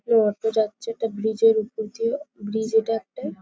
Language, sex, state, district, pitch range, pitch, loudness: Bengali, female, West Bengal, Paschim Medinipur, 220-225 Hz, 220 Hz, -24 LUFS